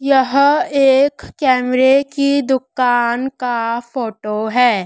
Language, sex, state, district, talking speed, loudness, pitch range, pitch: Hindi, female, Madhya Pradesh, Dhar, 100 wpm, -15 LUFS, 240-275 Hz, 260 Hz